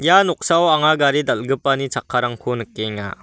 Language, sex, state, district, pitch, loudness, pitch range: Garo, male, Meghalaya, West Garo Hills, 135 Hz, -18 LUFS, 120-155 Hz